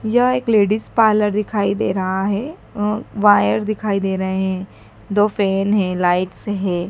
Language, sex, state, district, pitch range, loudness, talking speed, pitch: Hindi, female, Madhya Pradesh, Dhar, 190-215 Hz, -18 LUFS, 165 wpm, 205 Hz